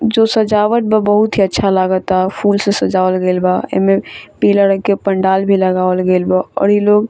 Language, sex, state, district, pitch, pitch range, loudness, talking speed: Bhojpuri, female, Bihar, Saran, 195 Hz, 185-210 Hz, -13 LUFS, 210 wpm